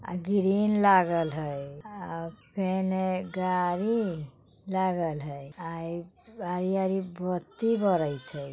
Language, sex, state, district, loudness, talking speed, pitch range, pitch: Bajjika, female, Bihar, Vaishali, -29 LUFS, 100 wpm, 160-190 Hz, 180 Hz